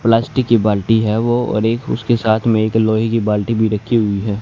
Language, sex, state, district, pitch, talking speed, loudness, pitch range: Hindi, male, Haryana, Charkhi Dadri, 110 Hz, 245 wpm, -16 LUFS, 110-115 Hz